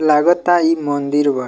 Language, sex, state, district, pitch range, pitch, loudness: Bhojpuri, male, Bihar, Muzaffarpur, 145-170 Hz, 150 Hz, -15 LUFS